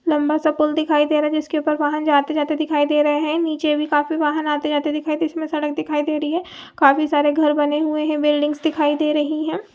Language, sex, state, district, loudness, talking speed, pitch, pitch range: Hindi, female, Chhattisgarh, Raigarh, -19 LUFS, 265 wpm, 300 Hz, 295-310 Hz